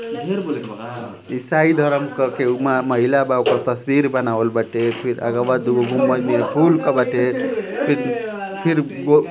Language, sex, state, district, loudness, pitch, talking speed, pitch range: Bhojpuri, male, Uttar Pradesh, Ghazipur, -19 LUFS, 130 Hz, 140 wpm, 120-150 Hz